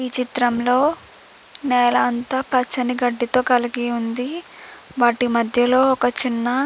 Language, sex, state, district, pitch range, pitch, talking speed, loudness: Telugu, female, Andhra Pradesh, Chittoor, 240-255 Hz, 245 Hz, 110 wpm, -19 LUFS